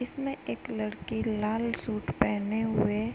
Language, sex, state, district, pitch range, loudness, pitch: Hindi, female, Uttar Pradesh, Hamirpur, 205-230 Hz, -31 LUFS, 220 Hz